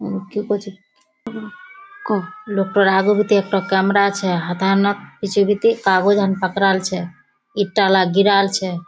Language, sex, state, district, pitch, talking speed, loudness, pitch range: Hindi, female, Bihar, Kishanganj, 200 Hz, 80 wpm, -17 LUFS, 190-210 Hz